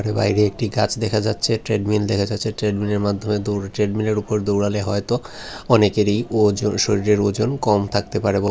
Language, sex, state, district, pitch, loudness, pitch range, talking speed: Bengali, male, Tripura, West Tripura, 105 Hz, -20 LUFS, 100-110 Hz, 160 wpm